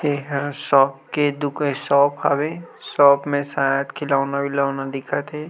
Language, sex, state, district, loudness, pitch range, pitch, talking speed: Chhattisgarhi, male, Chhattisgarh, Rajnandgaon, -20 LUFS, 140-145 Hz, 140 Hz, 140 wpm